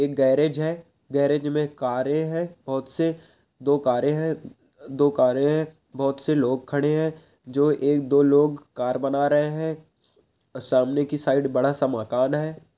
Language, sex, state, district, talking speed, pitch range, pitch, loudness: Hindi, male, Chhattisgarh, Balrampur, 160 wpm, 135-155 Hz, 145 Hz, -23 LUFS